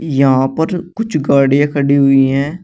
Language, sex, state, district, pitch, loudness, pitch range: Hindi, male, Uttar Pradesh, Shamli, 140 Hz, -13 LUFS, 135-160 Hz